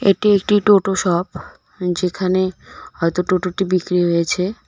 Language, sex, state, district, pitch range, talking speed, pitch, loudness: Bengali, female, West Bengal, Cooch Behar, 180-195 Hz, 115 wpm, 185 Hz, -18 LUFS